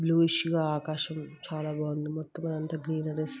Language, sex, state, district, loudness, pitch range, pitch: Telugu, female, Andhra Pradesh, Guntur, -31 LUFS, 155-165 Hz, 155 Hz